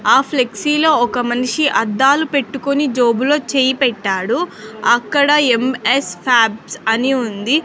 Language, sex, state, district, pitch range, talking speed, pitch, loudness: Telugu, female, Andhra Pradesh, Sri Satya Sai, 240-285 Hz, 110 wpm, 260 Hz, -15 LUFS